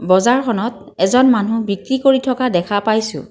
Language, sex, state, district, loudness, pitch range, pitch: Assamese, female, Assam, Kamrup Metropolitan, -16 LUFS, 195-255 Hz, 225 Hz